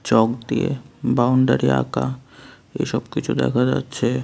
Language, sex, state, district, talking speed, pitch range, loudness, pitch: Bengali, male, Tripura, West Tripura, 115 wpm, 110-130 Hz, -21 LUFS, 120 Hz